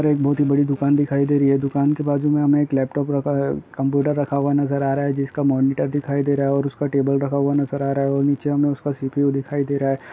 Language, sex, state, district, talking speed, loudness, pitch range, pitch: Hindi, male, Uttar Pradesh, Deoria, 300 wpm, -20 LUFS, 140-145 Hz, 140 Hz